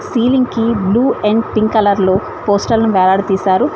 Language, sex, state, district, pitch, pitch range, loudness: Telugu, female, Telangana, Mahabubabad, 215 Hz, 195-230 Hz, -13 LUFS